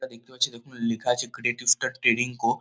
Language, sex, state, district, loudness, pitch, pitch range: Bengali, male, West Bengal, North 24 Parganas, -25 LUFS, 120 Hz, 115-125 Hz